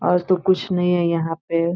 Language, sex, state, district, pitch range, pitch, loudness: Hindi, female, Bihar, Saran, 170-180 Hz, 175 Hz, -20 LUFS